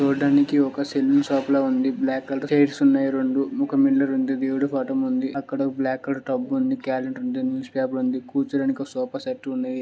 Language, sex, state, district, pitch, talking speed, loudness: Telugu, male, Andhra Pradesh, Srikakulam, 140 Hz, 200 wpm, -23 LUFS